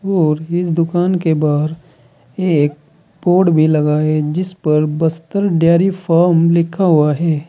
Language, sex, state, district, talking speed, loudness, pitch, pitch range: Hindi, male, Uttar Pradesh, Saharanpur, 145 wpm, -15 LUFS, 165 Hz, 155-175 Hz